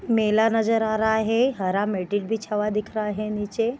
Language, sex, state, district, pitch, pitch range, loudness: Hindi, female, Bihar, Vaishali, 215 Hz, 210-225 Hz, -23 LUFS